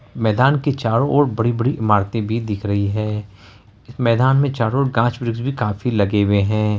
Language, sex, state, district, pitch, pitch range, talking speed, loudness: Hindi, male, Bihar, Araria, 115 Hz, 105-125 Hz, 185 wpm, -18 LUFS